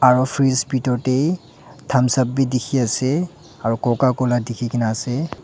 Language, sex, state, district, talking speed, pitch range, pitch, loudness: Nagamese, male, Nagaland, Dimapur, 145 wpm, 120-135 Hz, 130 Hz, -20 LUFS